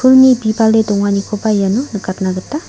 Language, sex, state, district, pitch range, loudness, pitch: Garo, female, Meghalaya, South Garo Hills, 200-245 Hz, -14 LUFS, 215 Hz